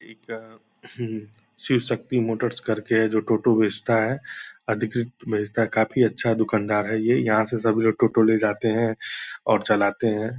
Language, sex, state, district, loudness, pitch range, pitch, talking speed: Hindi, male, Bihar, Purnia, -23 LUFS, 110-115 Hz, 110 Hz, 175 wpm